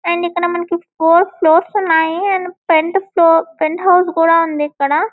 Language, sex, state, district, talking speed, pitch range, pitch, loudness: Telugu, female, Telangana, Karimnagar, 165 wpm, 325-360 Hz, 345 Hz, -14 LUFS